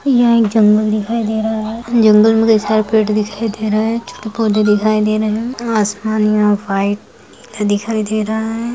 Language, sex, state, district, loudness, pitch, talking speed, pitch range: Hindi, female, Bihar, Saharsa, -15 LUFS, 215 Hz, 200 wpm, 210-225 Hz